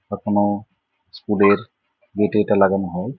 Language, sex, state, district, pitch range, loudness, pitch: Bengali, male, West Bengal, Jhargram, 100-105 Hz, -19 LUFS, 100 Hz